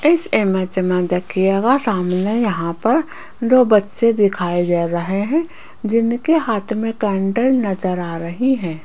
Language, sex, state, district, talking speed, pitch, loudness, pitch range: Hindi, female, Rajasthan, Jaipur, 140 wpm, 205 Hz, -18 LUFS, 180-240 Hz